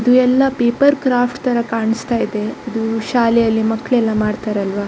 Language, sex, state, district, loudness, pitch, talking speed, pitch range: Kannada, female, Karnataka, Dakshina Kannada, -16 LUFS, 230 Hz, 135 wpm, 220-250 Hz